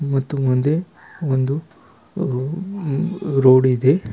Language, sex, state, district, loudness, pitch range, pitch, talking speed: Kannada, male, Karnataka, Bidar, -19 LUFS, 130-175 Hz, 140 Hz, 75 wpm